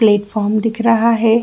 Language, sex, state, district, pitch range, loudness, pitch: Hindi, female, Jharkhand, Jamtara, 215-230 Hz, -15 LUFS, 225 Hz